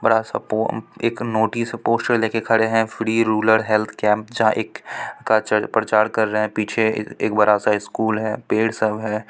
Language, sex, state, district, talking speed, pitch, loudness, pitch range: Hindi, female, Bihar, Supaul, 185 wpm, 110 Hz, -20 LUFS, 110-115 Hz